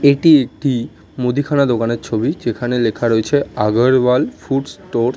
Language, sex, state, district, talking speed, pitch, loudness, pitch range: Bengali, male, West Bengal, North 24 Parganas, 140 wpm, 125 Hz, -16 LUFS, 115-140 Hz